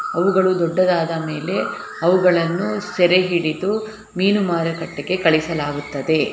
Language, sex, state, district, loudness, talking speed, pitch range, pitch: Kannada, female, Karnataka, Shimoga, -19 LUFS, 85 wpm, 165-185 Hz, 175 Hz